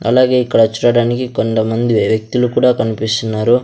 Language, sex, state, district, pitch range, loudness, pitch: Telugu, male, Andhra Pradesh, Sri Satya Sai, 110-125 Hz, -14 LUFS, 115 Hz